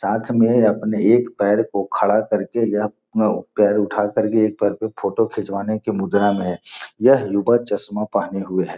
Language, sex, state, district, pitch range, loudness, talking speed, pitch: Hindi, male, Bihar, Gopalganj, 100-110 Hz, -19 LUFS, 185 wpm, 105 Hz